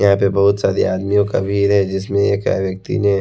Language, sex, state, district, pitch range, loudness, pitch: Hindi, male, Haryana, Rohtak, 95-100 Hz, -17 LUFS, 100 Hz